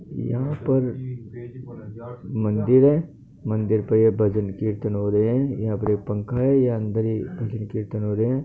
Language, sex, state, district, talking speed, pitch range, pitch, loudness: Marwari, male, Rajasthan, Nagaur, 165 wpm, 105-125 Hz, 110 Hz, -23 LUFS